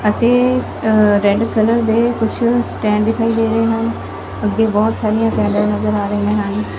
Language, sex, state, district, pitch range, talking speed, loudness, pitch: Punjabi, female, Punjab, Fazilka, 210-230 Hz, 150 wpm, -15 LUFS, 220 Hz